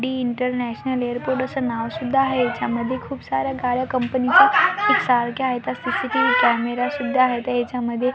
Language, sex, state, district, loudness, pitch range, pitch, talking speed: Marathi, female, Maharashtra, Washim, -20 LUFS, 245-260 Hz, 250 Hz, 160 wpm